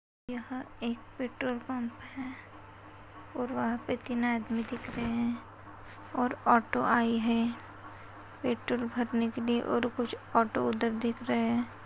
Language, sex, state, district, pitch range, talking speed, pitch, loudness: Hindi, female, Bihar, Jahanabad, 225-245 Hz, 140 wpm, 235 Hz, -32 LUFS